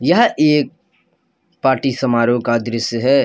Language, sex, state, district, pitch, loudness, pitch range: Hindi, male, Jharkhand, Palamu, 125 Hz, -16 LUFS, 120-135 Hz